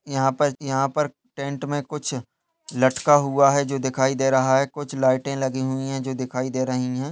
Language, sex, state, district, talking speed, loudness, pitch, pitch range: Hindi, male, Chhattisgarh, Kabirdham, 210 wpm, -22 LUFS, 135 Hz, 130-140 Hz